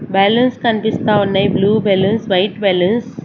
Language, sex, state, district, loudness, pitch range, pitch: Telugu, female, Andhra Pradesh, Sri Satya Sai, -14 LUFS, 195-220 Hz, 205 Hz